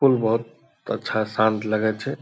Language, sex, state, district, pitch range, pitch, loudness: Hindi, male, Bihar, Purnia, 110-115 Hz, 110 Hz, -23 LUFS